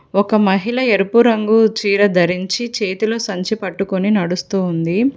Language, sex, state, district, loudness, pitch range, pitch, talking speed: Telugu, female, Telangana, Hyderabad, -16 LUFS, 190-220 Hz, 205 Hz, 115 wpm